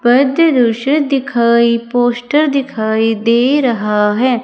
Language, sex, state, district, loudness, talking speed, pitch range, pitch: Hindi, female, Madhya Pradesh, Umaria, -13 LUFS, 80 wpm, 230-275 Hz, 245 Hz